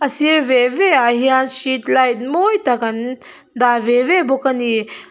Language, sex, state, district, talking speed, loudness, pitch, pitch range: Mizo, female, Mizoram, Aizawl, 175 wpm, -15 LUFS, 260 Hz, 245-290 Hz